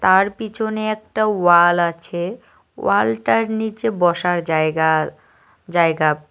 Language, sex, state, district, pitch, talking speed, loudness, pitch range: Bengali, male, West Bengal, Cooch Behar, 175 Hz, 95 wpm, -18 LUFS, 160-215 Hz